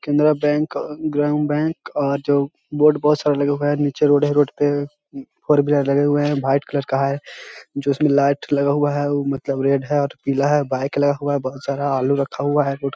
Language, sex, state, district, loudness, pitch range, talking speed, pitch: Hindi, male, Bihar, Jahanabad, -19 LUFS, 140-145 Hz, 255 wpm, 145 Hz